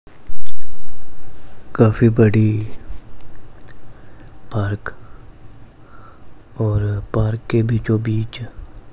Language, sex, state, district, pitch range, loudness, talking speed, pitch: Hindi, male, Punjab, Pathankot, 110-115 Hz, -19 LUFS, 55 wpm, 110 Hz